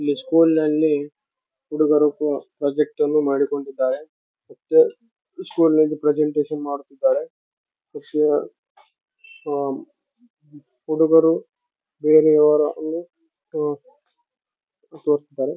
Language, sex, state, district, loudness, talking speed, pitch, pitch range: Kannada, male, Karnataka, Raichur, -20 LUFS, 60 wpm, 155 Hz, 145-230 Hz